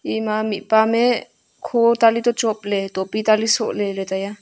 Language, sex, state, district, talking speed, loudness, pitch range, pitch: Wancho, female, Arunachal Pradesh, Longding, 150 wpm, -19 LUFS, 205-230 Hz, 220 Hz